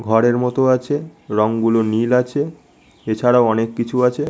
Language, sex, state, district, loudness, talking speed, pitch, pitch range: Bengali, male, West Bengal, Malda, -18 LUFS, 140 wpm, 125 Hz, 115-130 Hz